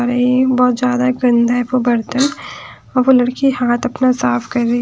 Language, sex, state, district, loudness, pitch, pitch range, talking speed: Hindi, female, Punjab, Pathankot, -15 LUFS, 250 Hz, 240-255 Hz, 185 wpm